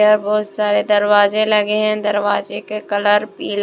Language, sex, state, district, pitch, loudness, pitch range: Hindi, female, Jharkhand, Deoghar, 210 Hz, -16 LUFS, 205-210 Hz